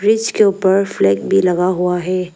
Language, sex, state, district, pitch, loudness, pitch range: Hindi, female, Arunachal Pradesh, Lower Dibang Valley, 185 Hz, -15 LUFS, 180-200 Hz